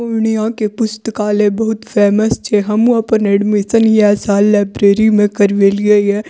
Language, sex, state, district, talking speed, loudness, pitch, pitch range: Maithili, female, Bihar, Purnia, 145 wpm, -13 LUFS, 210 Hz, 205-220 Hz